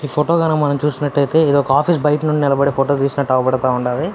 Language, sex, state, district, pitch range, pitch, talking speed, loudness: Telugu, male, Andhra Pradesh, Anantapur, 140-150 Hz, 145 Hz, 205 wpm, -16 LUFS